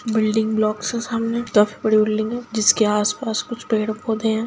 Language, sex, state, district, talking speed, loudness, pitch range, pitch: Hindi, female, Chhattisgarh, Kabirdham, 200 wpm, -20 LUFS, 215-230 Hz, 220 Hz